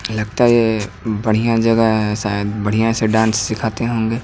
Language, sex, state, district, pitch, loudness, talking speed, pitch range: Hindi, male, Haryana, Rohtak, 110 Hz, -17 LUFS, 170 wpm, 105-115 Hz